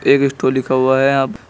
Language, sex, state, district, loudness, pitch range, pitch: Hindi, male, Uttar Pradesh, Shamli, -15 LUFS, 130-140 Hz, 130 Hz